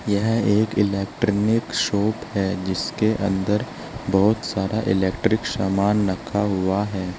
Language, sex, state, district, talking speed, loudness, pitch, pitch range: Hindi, male, Uttar Pradesh, Saharanpur, 115 wpm, -22 LUFS, 100 Hz, 95-110 Hz